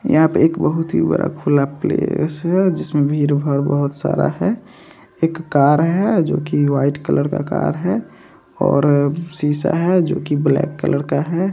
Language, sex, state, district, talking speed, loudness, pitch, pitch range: Hindi, male, Bihar, Samastipur, 150 wpm, -17 LUFS, 155 Hz, 145-180 Hz